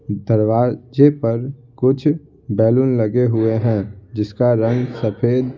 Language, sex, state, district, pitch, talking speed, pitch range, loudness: Hindi, male, Bihar, Patna, 120 Hz, 120 wpm, 110-130 Hz, -17 LUFS